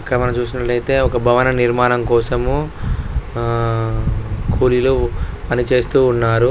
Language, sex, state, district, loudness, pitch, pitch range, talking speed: Telugu, male, Andhra Pradesh, Guntur, -17 LUFS, 120 Hz, 115-125 Hz, 100 wpm